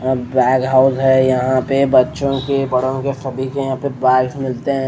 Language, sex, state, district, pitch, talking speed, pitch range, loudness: Hindi, male, Odisha, Nuapada, 130 Hz, 210 wpm, 130-135 Hz, -16 LUFS